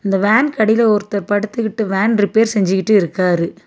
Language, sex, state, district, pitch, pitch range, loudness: Tamil, female, Tamil Nadu, Nilgiris, 205 Hz, 195-220 Hz, -15 LUFS